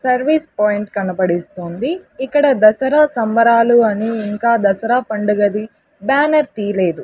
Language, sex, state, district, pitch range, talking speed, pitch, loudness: Telugu, female, Andhra Pradesh, Sri Satya Sai, 205-265 Hz, 100 wpm, 225 Hz, -15 LUFS